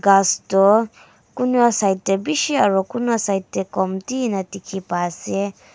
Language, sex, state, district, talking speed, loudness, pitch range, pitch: Nagamese, female, Nagaland, Kohima, 155 wpm, -19 LUFS, 190-230 Hz, 195 Hz